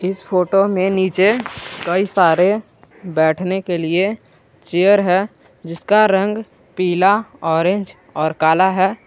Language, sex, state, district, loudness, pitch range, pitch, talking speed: Hindi, male, Jharkhand, Garhwa, -16 LUFS, 170-195 Hz, 185 Hz, 120 wpm